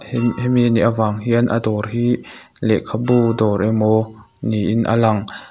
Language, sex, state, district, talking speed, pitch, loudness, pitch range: Mizo, male, Mizoram, Aizawl, 155 wpm, 110 Hz, -18 LUFS, 110-120 Hz